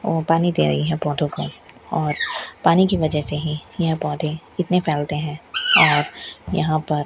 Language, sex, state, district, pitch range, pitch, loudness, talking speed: Hindi, female, Rajasthan, Bikaner, 150-165 Hz, 155 Hz, -20 LUFS, 185 wpm